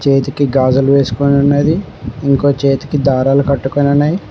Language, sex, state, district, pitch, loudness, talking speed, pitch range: Telugu, male, Telangana, Mahabubabad, 140 Hz, -13 LUFS, 125 wpm, 135-145 Hz